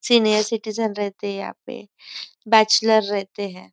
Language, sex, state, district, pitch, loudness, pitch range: Hindi, female, Maharashtra, Nagpur, 215 Hz, -20 LUFS, 200-220 Hz